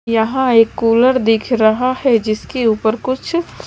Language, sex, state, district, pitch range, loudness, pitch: Hindi, female, Bihar, Kaimur, 225-255 Hz, -15 LUFS, 230 Hz